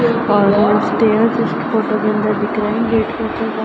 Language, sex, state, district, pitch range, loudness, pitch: Hindi, female, Uttar Pradesh, Ghazipur, 210-230 Hz, -16 LUFS, 215 Hz